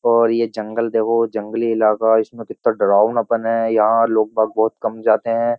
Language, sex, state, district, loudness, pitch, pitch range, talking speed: Hindi, male, Uttar Pradesh, Jyotiba Phule Nagar, -17 LUFS, 115 Hz, 110-115 Hz, 180 wpm